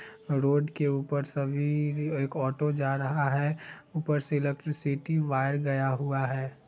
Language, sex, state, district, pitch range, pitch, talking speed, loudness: Hindi, male, Bihar, Vaishali, 135-150 Hz, 145 Hz, 145 wpm, -29 LUFS